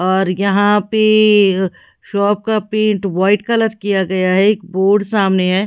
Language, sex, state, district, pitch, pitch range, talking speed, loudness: Hindi, female, Haryana, Charkhi Dadri, 200 Hz, 190-210 Hz, 160 wpm, -14 LUFS